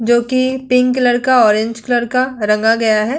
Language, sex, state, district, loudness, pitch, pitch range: Hindi, female, Uttar Pradesh, Hamirpur, -14 LUFS, 240 Hz, 225-255 Hz